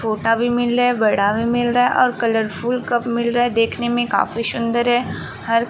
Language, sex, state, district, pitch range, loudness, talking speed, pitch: Hindi, female, Uttar Pradesh, Varanasi, 230-240 Hz, -18 LUFS, 240 wpm, 235 Hz